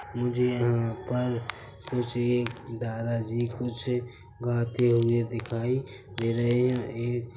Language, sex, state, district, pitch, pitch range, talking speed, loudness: Hindi, male, Chhattisgarh, Bilaspur, 120 Hz, 115-125 Hz, 120 wpm, -28 LUFS